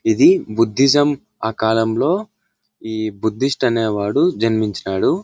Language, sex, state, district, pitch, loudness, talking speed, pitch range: Telugu, male, Karnataka, Bellary, 115 Hz, -18 LUFS, 90 wpm, 110-175 Hz